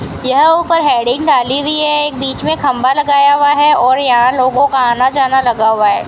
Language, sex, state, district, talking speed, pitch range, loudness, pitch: Hindi, female, Rajasthan, Bikaner, 205 wpm, 250-295 Hz, -11 LUFS, 270 Hz